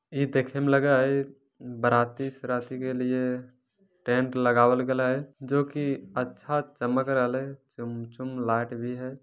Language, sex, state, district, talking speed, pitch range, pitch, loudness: Hindi, male, Bihar, Jamui, 145 wpm, 125-140 Hz, 130 Hz, -27 LUFS